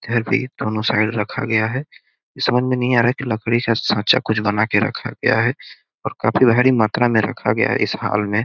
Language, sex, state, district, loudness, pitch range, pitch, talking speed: Hindi, male, Bihar, Gopalganj, -18 LUFS, 110-125 Hz, 115 Hz, 240 wpm